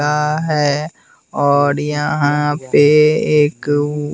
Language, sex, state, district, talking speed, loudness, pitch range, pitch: Hindi, male, Bihar, West Champaran, 115 wpm, -15 LUFS, 145-150 Hz, 150 Hz